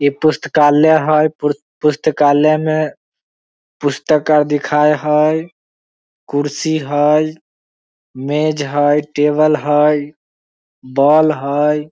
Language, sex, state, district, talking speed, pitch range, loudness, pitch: Maithili, male, Bihar, Samastipur, 90 wpm, 145-155 Hz, -14 LUFS, 150 Hz